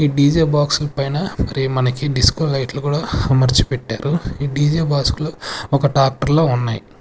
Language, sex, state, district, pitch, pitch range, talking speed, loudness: Telugu, male, Andhra Pradesh, Sri Satya Sai, 140 Hz, 130-150 Hz, 155 wpm, -18 LUFS